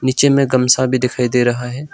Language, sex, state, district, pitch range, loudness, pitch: Hindi, male, Arunachal Pradesh, Longding, 125-130 Hz, -15 LUFS, 130 Hz